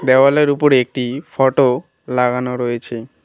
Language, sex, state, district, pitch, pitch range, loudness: Bengali, male, West Bengal, Alipurduar, 130 Hz, 125-140 Hz, -16 LUFS